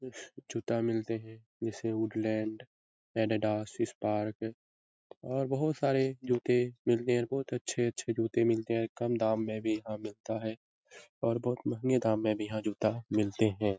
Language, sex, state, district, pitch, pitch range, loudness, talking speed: Hindi, male, Bihar, Lakhisarai, 110 Hz, 110-120 Hz, -33 LUFS, 155 wpm